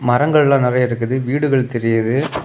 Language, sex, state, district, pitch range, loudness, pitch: Tamil, male, Tamil Nadu, Kanyakumari, 120-140 Hz, -16 LUFS, 125 Hz